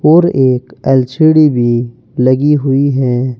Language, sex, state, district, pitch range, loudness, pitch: Hindi, male, Uttar Pradesh, Saharanpur, 125-150 Hz, -11 LUFS, 130 Hz